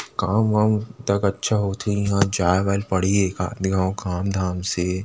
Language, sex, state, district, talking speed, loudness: Chhattisgarhi, male, Chhattisgarh, Rajnandgaon, 180 wpm, -22 LUFS